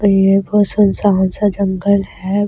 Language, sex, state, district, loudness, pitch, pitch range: Hindi, female, Delhi, New Delhi, -14 LUFS, 200 Hz, 195-205 Hz